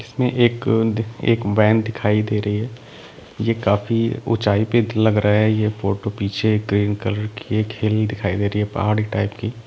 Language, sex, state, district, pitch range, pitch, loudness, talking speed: Hindi, male, Jharkhand, Sahebganj, 105-115 Hz, 110 Hz, -20 LUFS, 190 wpm